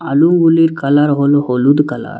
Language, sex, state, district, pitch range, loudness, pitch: Bengali, male, Assam, Hailakandi, 140-165 Hz, -12 LUFS, 145 Hz